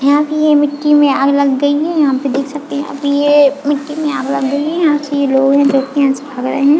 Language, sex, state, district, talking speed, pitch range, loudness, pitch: Hindi, female, Chhattisgarh, Bilaspur, 280 wpm, 275-295 Hz, -13 LUFS, 285 Hz